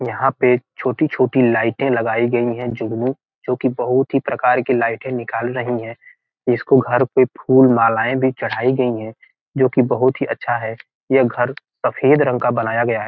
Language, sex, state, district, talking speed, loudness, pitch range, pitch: Hindi, male, Bihar, Gopalganj, 190 wpm, -18 LUFS, 115-130 Hz, 125 Hz